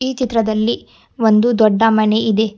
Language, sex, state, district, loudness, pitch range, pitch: Kannada, female, Karnataka, Bidar, -15 LUFS, 215-230 Hz, 220 Hz